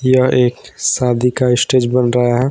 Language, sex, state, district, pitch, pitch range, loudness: Hindi, male, Jharkhand, Garhwa, 125 Hz, 125-130 Hz, -14 LUFS